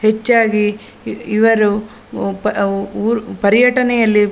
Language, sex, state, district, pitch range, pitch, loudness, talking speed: Kannada, female, Karnataka, Dakshina Kannada, 205-225 Hz, 215 Hz, -15 LUFS, 110 wpm